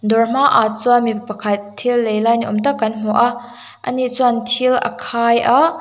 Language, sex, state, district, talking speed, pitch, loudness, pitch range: Mizo, female, Mizoram, Aizawl, 205 wpm, 235 Hz, -16 LUFS, 220-245 Hz